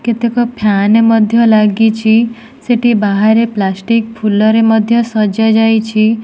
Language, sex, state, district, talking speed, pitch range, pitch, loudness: Odia, female, Odisha, Nuapada, 115 wpm, 215-230 Hz, 225 Hz, -11 LUFS